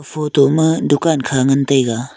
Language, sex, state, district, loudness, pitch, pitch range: Wancho, male, Arunachal Pradesh, Longding, -15 LUFS, 140 Hz, 135-155 Hz